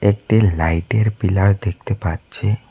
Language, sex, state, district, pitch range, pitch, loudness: Bengali, male, West Bengal, Cooch Behar, 95-110 Hz, 100 Hz, -18 LUFS